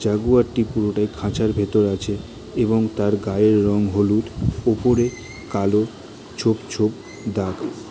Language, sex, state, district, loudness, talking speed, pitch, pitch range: Bengali, male, West Bengal, Jalpaiguri, -21 LUFS, 115 wpm, 105 Hz, 105-115 Hz